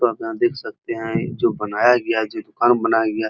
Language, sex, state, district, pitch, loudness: Hindi, male, Uttar Pradesh, Muzaffarnagar, 120 Hz, -20 LUFS